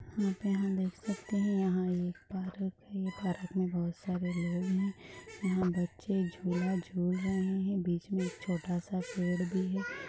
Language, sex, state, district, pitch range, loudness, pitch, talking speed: Hindi, female, Bihar, Purnia, 180-190 Hz, -34 LUFS, 185 Hz, 180 wpm